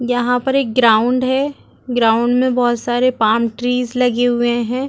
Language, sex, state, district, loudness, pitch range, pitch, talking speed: Hindi, female, Chhattisgarh, Rajnandgaon, -16 LUFS, 240-255 Hz, 245 Hz, 170 wpm